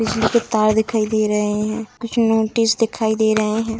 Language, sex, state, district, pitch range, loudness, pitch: Hindi, female, Bihar, Darbhanga, 215-225 Hz, -18 LUFS, 220 Hz